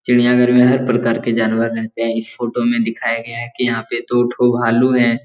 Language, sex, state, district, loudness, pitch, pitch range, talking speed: Hindi, male, Bihar, Jahanabad, -16 LUFS, 120 Hz, 115-125 Hz, 250 wpm